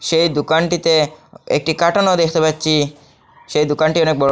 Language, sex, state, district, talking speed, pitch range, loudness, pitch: Bengali, male, Assam, Hailakandi, 140 wpm, 150-165 Hz, -16 LUFS, 160 Hz